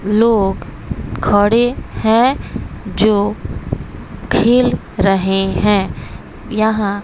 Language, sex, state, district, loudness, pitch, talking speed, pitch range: Hindi, female, Bihar, West Champaran, -15 LUFS, 210 Hz, 70 wpm, 200-225 Hz